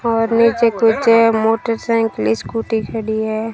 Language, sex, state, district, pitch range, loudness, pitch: Hindi, female, Rajasthan, Bikaner, 225-230 Hz, -16 LUFS, 225 Hz